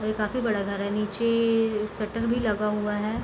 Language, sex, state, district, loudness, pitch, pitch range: Hindi, female, Bihar, Gopalganj, -26 LUFS, 215 Hz, 210-230 Hz